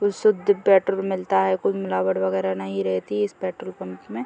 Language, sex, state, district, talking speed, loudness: Hindi, female, Chhattisgarh, Bilaspur, 210 wpm, -22 LUFS